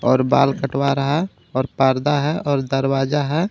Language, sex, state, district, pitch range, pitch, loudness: Hindi, female, Jharkhand, Garhwa, 135-145 Hz, 140 Hz, -19 LUFS